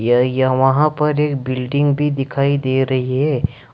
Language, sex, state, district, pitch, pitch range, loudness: Hindi, male, Jharkhand, Deoghar, 135 Hz, 130-145 Hz, -17 LUFS